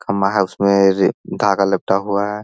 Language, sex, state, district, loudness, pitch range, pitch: Hindi, male, Bihar, Jahanabad, -17 LUFS, 95-100 Hz, 100 Hz